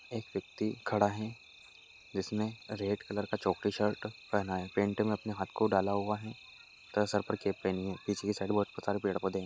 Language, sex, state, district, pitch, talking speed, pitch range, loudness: Hindi, male, Bihar, Lakhisarai, 105 Hz, 210 wpm, 95-105 Hz, -34 LUFS